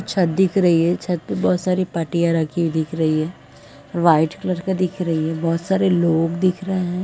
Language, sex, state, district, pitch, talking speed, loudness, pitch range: Hindi, female, Uttar Pradesh, Muzaffarnagar, 170 Hz, 220 wpm, -20 LUFS, 165-185 Hz